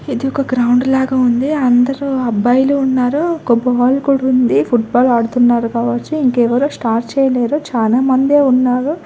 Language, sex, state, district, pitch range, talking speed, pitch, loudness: Telugu, female, Telangana, Nalgonda, 240-275 Hz, 140 wpm, 255 Hz, -14 LUFS